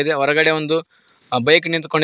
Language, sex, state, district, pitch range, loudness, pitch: Kannada, male, Karnataka, Koppal, 155-165 Hz, -17 LUFS, 160 Hz